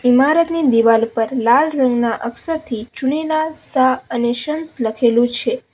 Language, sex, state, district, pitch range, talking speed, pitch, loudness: Gujarati, female, Gujarat, Valsad, 235-305 Hz, 125 wpm, 250 Hz, -17 LUFS